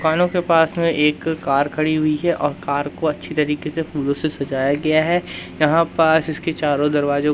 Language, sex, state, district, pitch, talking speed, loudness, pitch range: Hindi, male, Madhya Pradesh, Umaria, 155 Hz, 205 wpm, -19 LUFS, 145-160 Hz